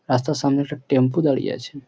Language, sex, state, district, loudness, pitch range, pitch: Bengali, male, West Bengal, Purulia, -21 LUFS, 130-145 Hz, 140 Hz